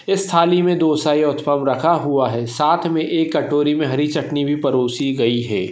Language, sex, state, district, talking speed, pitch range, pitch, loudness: Hindi, male, Maharashtra, Solapur, 190 wpm, 135-165 Hz, 150 Hz, -18 LUFS